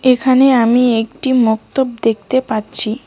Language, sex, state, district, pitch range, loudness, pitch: Bengali, female, West Bengal, Cooch Behar, 225-260 Hz, -14 LUFS, 245 Hz